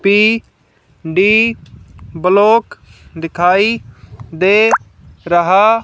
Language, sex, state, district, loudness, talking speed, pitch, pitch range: Hindi, female, Haryana, Charkhi Dadri, -12 LUFS, 50 wpm, 180 Hz, 145-210 Hz